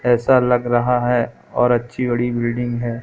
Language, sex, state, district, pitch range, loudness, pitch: Hindi, male, Madhya Pradesh, Katni, 120-125 Hz, -18 LUFS, 120 Hz